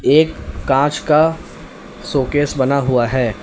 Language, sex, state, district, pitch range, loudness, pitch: Hindi, male, Uttar Pradesh, Lalitpur, 130-150 Hz, -16 LUFS, 140 Hz